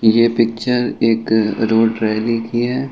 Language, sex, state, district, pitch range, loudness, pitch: Hindi, male, Uttar Pradesh, Ghazipur, 110-120 Hz, -16 LUFS, 115 Hz